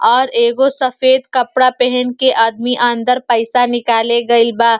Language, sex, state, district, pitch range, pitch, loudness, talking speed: Bhojpuri, female, Uttar Pradesh, Ghazipur, 235-255 Hz, 245 Hz, -13 LUFS, 150 wpm